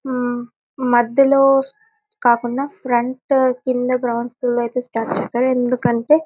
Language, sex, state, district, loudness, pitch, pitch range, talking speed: Telugu, female, Telangana, Karimnagar, -18 LUFS, 250 Hz, 240-270 Hz, 85 wpm